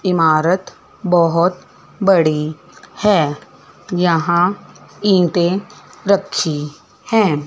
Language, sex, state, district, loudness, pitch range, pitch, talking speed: Hindi, female, Chandigarh, Chandigarh, -16 LUFS, 160-195 Hz, 175 Hz, 65 wpm